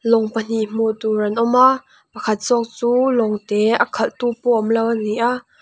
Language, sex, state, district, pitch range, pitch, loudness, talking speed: Mizo, female, Mizoram, Aizawl, 215-240 Hz, 230 Hz, -18 LUFS, 225 wpm